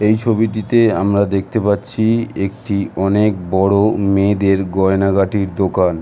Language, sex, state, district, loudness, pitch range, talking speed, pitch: Bengali, male, West Bengal, North 24 Parganas, -16 LUFS, 95-110 Hz, 110 wpm, 100 Hz